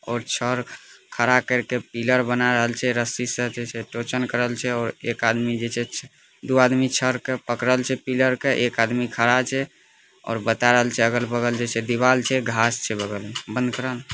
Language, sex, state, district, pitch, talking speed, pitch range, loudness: Maithili, male, Bihar, Purnia, 120 Hz, 155 wpm, 115-125 Hz, -22 LUFS